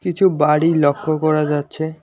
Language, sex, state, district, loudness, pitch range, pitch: Bengali, male, West Bengal, Alipurduar, -17 LUFS, 150-165 Hz, 155 Hz